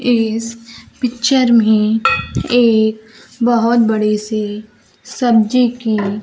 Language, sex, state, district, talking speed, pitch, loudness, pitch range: Hindi, female, Bihar, Kaimur, 85 wpm, 230 Hz, -14 LUFS, 215-240 Hz